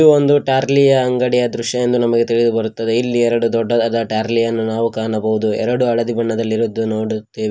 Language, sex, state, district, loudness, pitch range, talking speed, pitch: Kannada, male, Karnataka, Koppal, -16 LUFS, 110-125 Hz, 150 wpm, 115 Hz